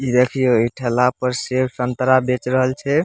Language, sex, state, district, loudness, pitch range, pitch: Maithili, male, Bihar, Samastipur, -18 LUFS, 125-130 Hz, 125 Hz